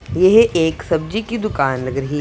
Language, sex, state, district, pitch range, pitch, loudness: Hindi, female, Punjab, Pathankot, 140-215 Hz, 165 Hz, -17 LUFS